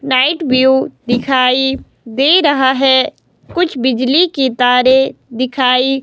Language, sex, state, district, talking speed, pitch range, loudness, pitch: Hindi, female, Himachal Pradesh, Shimla, 110 wpm, 255-270 Hz, -12 LUFS, 260 Hz